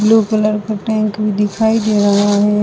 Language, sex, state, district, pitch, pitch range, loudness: Hindi, female, Uttar Pradesh, Saharanpur, 215 Hz, 210-215 Hz, -14 LUFS